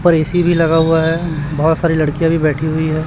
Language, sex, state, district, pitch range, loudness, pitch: Hindi, male, Chhattisgarh, Raipur, 155-165 Hz, -15 LUFS, 160 Hz